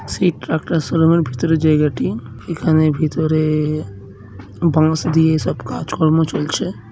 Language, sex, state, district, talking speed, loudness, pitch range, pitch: Bengali, male, West Bengal, Jhargram, 120 wpm, -17 LUFS, 150-160 Hz, 155 Hz